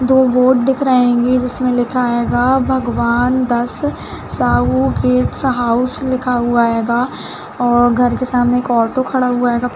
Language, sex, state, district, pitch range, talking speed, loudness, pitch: Hindi, female, Uttar Pradesh, Budaun, 240-255 Hz, 155 wpm, -15 LUFS, 245 Hz